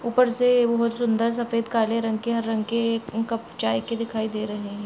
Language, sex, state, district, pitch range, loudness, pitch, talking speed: Angika, female, Bihar, Madhepura, 220-235 Hz, -24 LUFS, 230 Hz, 220 wpm